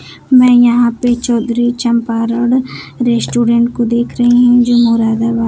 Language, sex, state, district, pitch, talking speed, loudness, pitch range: Hindi, female, Bihar, Kaimur, 240 Hz, 130 wpm, -12 LUFS, 235-245 Hz